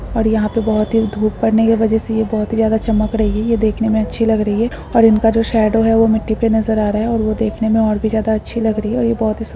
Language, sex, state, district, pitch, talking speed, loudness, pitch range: Hindi, female, Maharashtra, Dhule, 220 Hz, 315 wpm, -16 LUFS, 220-225 Hz